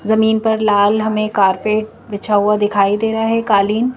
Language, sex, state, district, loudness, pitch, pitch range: Hindi, female, Madhya Pradesh, Bhopal, -15 LUFS, 215 Hz, 205-220 Hz